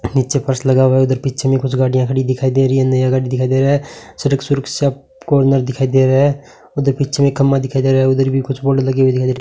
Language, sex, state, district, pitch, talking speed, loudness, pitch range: Hindi, male, Rajasthan, Bikaner, 135 Hz, 285 wpm, -15 LUFS, 130-135 Hz